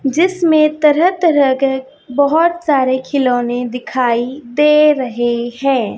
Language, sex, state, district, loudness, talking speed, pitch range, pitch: Hindi, female, Chhattisgarh, Raipur, -14 LUFS, 110 wpm, 250-300 Hz, 275 Hz